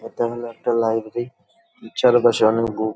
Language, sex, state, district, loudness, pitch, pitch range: Bengali, male, West Bengal, Dakshin Dinajpur, -20 LUFS, 115 Hz, 115-120 Hz